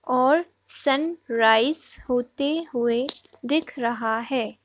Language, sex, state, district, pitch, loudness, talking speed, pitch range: Hindi, female, Madhya Pradesh, Bhopal, 255 Hz, -23 LUFS, 105 wpm, 235-300 Hz